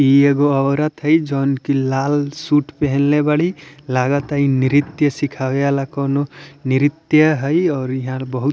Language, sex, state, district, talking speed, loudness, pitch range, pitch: Bhojpuri, male, Bihar, Muzaffarpur, 155 wpm, -17 LUFS, 135-145 Hz, 140 Hz